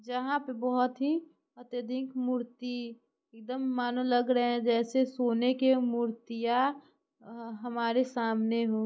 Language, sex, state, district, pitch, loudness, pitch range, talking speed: Hindi, female, Bihar, Muzaffarpur, 245 Hz, -30 LUFS, 235-255 Hz, 120 wpm